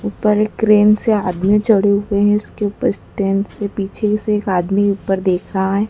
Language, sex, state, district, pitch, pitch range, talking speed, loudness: Hindi, female, Madhya Pradesh, Dhar, 205 Hz, 195-210 Hz, 205 wpm, -16 LUFS